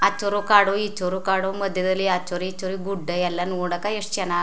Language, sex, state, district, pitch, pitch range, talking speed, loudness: Kannada, female, Karnataka, Chamarajanagar, 190 Hz, 180-200 Hz, 175 wpm, -23 LUFS